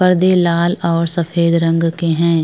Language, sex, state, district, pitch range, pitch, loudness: Hindi, female, Uttar Pradesh, Jyotiba Phule Nagar, 165-175 Hz, 170 Hz, -15 LUFS